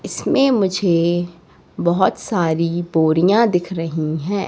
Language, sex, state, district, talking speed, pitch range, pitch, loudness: Hindi, female, Madhya Pradesh, Katni, 105 wpm, 165-190 Hz, 175 Hz, -18 LUFS